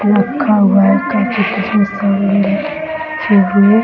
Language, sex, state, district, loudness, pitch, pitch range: Hindi, female, Bihar, Darbhanga, -13 LUFS, 205 Hz, 200-230 Hz